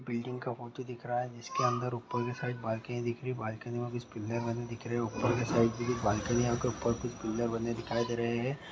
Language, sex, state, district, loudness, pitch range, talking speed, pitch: Hindi, male, Chhattisgarh, Bastar, -34 LUFS, 115-125 Hz, 180 wpm, 120 Hz